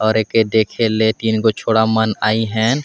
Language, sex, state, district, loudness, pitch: Sadri, male, Chhattisgarh, Jashpur, -16 LUFS, 110 Hz